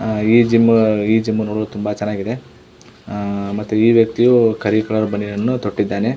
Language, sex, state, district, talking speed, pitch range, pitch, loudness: Kannada, male, Karnataka, Belgaum, 145 wpm, 105-115 Hz, 110 Hz, -16 LUFS